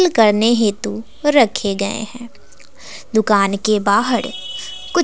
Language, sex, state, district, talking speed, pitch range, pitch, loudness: Hindi, female, Bihar, West Champaran, 105 wpm, 205-240 Hz, 220 Hz, -17 LUFS